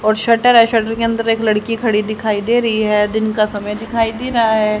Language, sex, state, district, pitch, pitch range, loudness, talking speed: Hindi, female, Haryana, Rohtak, 220 Hz, 215-230 Hz, -15 LUFS, 250 wpm